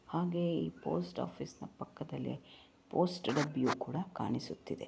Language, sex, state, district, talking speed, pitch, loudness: Kannada, female, Karnataka, Raichur, 125 wpm, 150 Hz, -37 LUFS